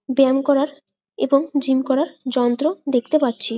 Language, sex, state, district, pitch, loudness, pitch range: Bengali, female, West Bengal, Jalpaiguri, 275 Hz, -19 LUFS, 255-290 Hz